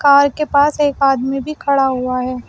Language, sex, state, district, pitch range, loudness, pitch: Hindi, female, Uttar Pradesh, Shamli, 265-285 Hz, -15 LUFS, 280 Hz